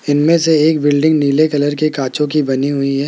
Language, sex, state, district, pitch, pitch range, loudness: Hindi, male, Rajasthan, Jaipur, 145 Hz, 140-155 Hz, -14 LUFS